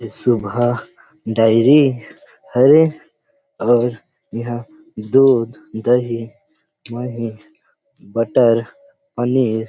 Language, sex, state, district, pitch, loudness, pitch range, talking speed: Chhattisgarhi, male, Chhattisgarh, Rajnandgaon, 120 Hz, -17 LUFS, 115-135 Hz, 55 wpm